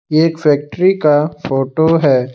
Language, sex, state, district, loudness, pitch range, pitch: Hindi, male, Assam, Kamrup Metropolitan, -14 LUFS, 140-165 Hz, 150 Hz